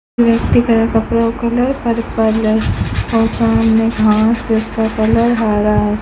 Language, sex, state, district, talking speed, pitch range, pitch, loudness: Hindi, female, Rajasthan, Bikaner, 150 wpm, 220-230 Hz, 225 Hz, -14 LUFS